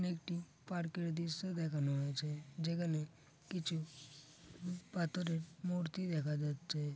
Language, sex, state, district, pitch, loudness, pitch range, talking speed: Bengali, male, West Bengal, Paschim Medinipur, 165 Hz, -41 LUFS, 150-175 Hz, 110 wpm